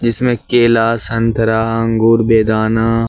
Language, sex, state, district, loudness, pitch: Hindi, male, Jharkhand, Ranchi, -13 LUFS, 115 Hz